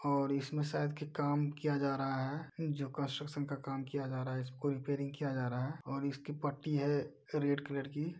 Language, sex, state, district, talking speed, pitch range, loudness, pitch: Hindi, male, Uttar Pradesh, Deoria, 220 wpm, 135-145 Hz, -38 LUFS, 140 Hz